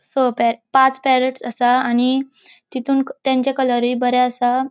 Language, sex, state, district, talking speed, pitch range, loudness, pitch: Konkani, female, Goa, North and South Goa, 140 wpm, 245-265 Hz, -17 LUFS, 255 Hz